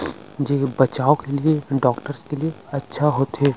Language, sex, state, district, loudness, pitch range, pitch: Chhattisgarhi, male, Chhattisgarh, Rajnandgaon, -21 LUFS, 135-150 Hz, 140 Hz